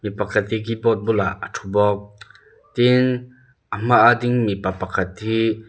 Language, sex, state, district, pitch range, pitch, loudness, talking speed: Mizo, male, Mizoram, Aizawl, 105-120 Hz, 110 Hz, -20 LUFS, 150 wpm